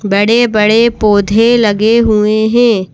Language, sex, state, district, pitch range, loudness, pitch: Hindi, female, Madhya Pradesh, Bhopal, 210-230 Hz, -10 LUFS, 220 Hz